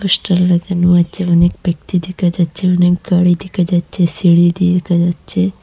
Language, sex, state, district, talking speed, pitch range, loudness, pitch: Bengali, female, Assam, Hailakandi, 150 wpm, 175-180 Hz, -14 LUFS, 175 Hz